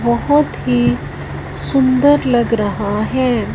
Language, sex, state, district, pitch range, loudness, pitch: Hindi, female, Punjab, Fazilka, 205-260 Hz, -15 LUFS, 235 Hz